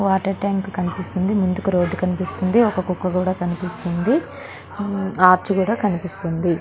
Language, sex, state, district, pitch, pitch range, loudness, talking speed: Telugu, female, Andhra Pradesh, Srikakulam, 185 Hz, 180-195 Hz, -20 LUFS, 120 wpm